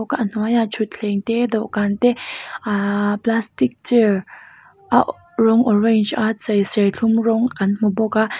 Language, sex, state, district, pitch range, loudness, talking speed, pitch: Mizo, female, Mizoram, Aizawl, 205-230 Hz, -18 LUFS, 145 wpm, 220 Hz